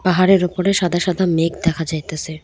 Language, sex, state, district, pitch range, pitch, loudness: Bengali, female, West Bengal, Cooch Behar, 160-185 Hz, 175 Hz, -18 LUFS